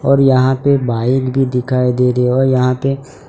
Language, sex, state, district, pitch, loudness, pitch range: Hindi, male, Gujarat, Valsad, 130 Hz, -14 LUFS, 125-135 Hz